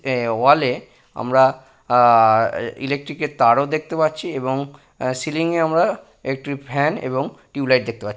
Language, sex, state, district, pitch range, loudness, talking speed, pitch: Bengali, male, West Bengal, Purulia, 125-150 Hz, -19 LUFS, 170 wpm, 135 Hz